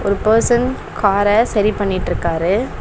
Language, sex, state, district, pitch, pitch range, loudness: Tamil, female, Tamil Nadu, Chennai, 205 Hz, 200-225 Hz, -16 LUFS